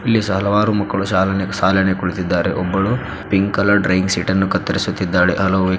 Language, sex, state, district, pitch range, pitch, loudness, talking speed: Kannada, male, Karnataka, Dharwad, 95-100 Hz, 95 Hz, -17 LUFS, 125 wpm